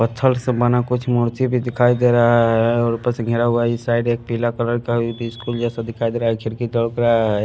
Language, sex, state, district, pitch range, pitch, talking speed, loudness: Hindi, male, Haryana, Rohtak, 115-120 Hz, 120 Hz, 250 wpm, -19 LUFS